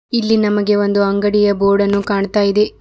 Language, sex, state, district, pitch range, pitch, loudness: Kannada, female, Karnataka, Bidar, 200-210 Hz, 205 Hz, -15 LUFS